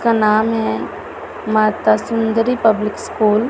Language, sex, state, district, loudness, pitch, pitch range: Hindi, female, Chhattisgarh, Raipur, -16 LUFS, 220 Hz, 215-225 Hz